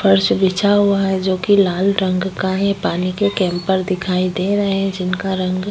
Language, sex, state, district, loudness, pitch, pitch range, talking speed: Hindi, female, Uttar Pradesh, Budaun, -17 LUFS, 190 Hz, 185-200 Hz, 210 wpm